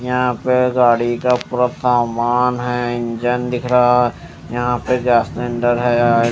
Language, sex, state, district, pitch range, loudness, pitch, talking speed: Hindi, male, Chandigarh, Chandigarh, 120-125 Hz, -17 LUFS, 120 Hz, 115 wpm